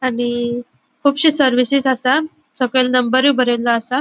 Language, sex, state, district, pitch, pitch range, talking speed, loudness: Konkani, female, Goa, North and South Goa, 255 Hz, 245-270 Hz, 120 wpm, -16 LUFS